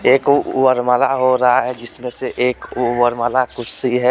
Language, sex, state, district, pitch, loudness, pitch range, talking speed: Hindi, male, Jharkhand, Deoghar, 125 Hz, -17 LUFS, 120-130 Hz, 160 wpm